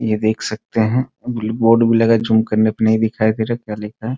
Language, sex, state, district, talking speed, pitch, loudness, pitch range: Hindi, male, Bihar, Muzaffarpur, 300 wpm, 110 Hz, -17 LUFS, 110-115 Hz